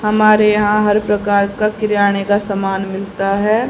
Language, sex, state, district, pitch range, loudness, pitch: Hindi, female, Haryana, Rohtak, 200-215 Hz, -15 LUFS, 205 Hz